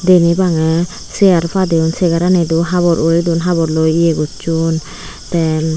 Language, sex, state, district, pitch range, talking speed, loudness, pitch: Chakma, female, Tripura, Unakoti, 160-175 Hz, 115 wpm, -14 LUFS, 165 Hz